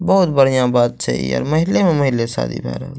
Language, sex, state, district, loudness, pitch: Maithili, male, Bihar, Madhepura, -17 LUFS, 125 Hz